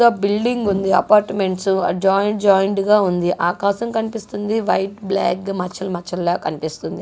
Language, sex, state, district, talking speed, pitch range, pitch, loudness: Telugu, female, Andhra Pradesh, Guntur, 155 wpm, 180-210 Hz, 195 Hz, -19 LUFS